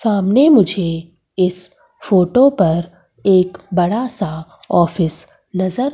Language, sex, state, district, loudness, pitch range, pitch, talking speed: Hindi, female, Madhya Pradesh, Umaria, -16 LUFS, 170-205 Hz, 185 Hz, 100 wpm